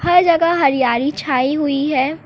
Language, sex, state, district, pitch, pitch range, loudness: Hindi, female, Uttar Pradesh, Lucknow, 285 Hz, 265-330 Hz, -16 LUFS